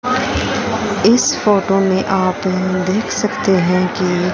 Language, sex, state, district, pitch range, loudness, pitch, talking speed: Hindi, female, Haryana, Rohtak, 185-205 Hz, -16 LUFS, 190 Hz, 125 wpm